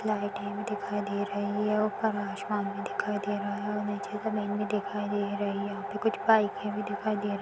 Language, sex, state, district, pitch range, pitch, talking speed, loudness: Hindi, female, Bihar, Vaishali, 200-210 Hz, 205 Hz, 235 wpm, -31 LUFS